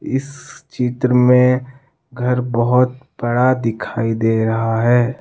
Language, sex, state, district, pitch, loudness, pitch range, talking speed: Hindi, male, Jharkhand, Deoghar, 125 Hz, -17 LUFS, 120-130 Hz, 115 wpm